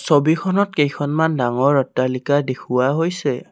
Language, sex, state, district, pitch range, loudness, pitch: Assamese, male, Assam, Kamrup Metropolitan, 130-160 Hz, -19 LUFS, 145 Hz